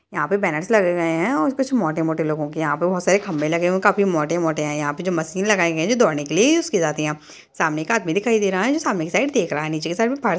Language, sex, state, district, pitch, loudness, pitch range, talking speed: Hindi, female, Uttarakhand, Uttarkashi, 170 Hz, -20 LUFS, 155-210 Hz, 310 wpm